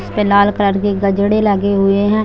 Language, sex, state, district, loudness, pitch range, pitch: Hindi, female, Chhattisgarh, Bilaspur, -14 LUFS, 200-205 Hz, 200 Hz